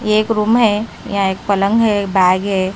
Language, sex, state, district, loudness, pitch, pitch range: Hindi, female, Himachal Pradesh, Shimla, -15 LUFS, 200 Hz, 195-215 Hz